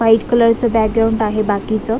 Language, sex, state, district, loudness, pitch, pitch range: Marathi, female, Maharashtra, Dhule, -15 LUFS, 225 Hz, 215-230 Hz